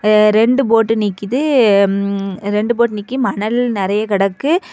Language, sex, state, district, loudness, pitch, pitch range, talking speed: Tamil, female, Tamil Nadu, Kanyakumari, -15 LUFS, 215 Hz, 200-240 Hz, 140 wpm